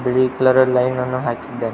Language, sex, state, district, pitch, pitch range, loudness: Kannada, male, Karnataka, Belgaum, 125 Hz, 125-130 Hz, -18 LUFS